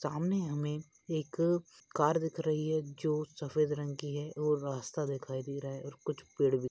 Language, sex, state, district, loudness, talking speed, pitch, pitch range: Hindi, male, Maharashtra, Nagpur, -35 LUFS, 195 wpm, 150 Hz, 140-155 Hz